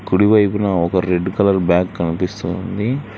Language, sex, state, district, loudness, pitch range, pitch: Telugu, male, Telangana, Hyderabad, -17 LUFS, 90-105 Hz, 95 Hz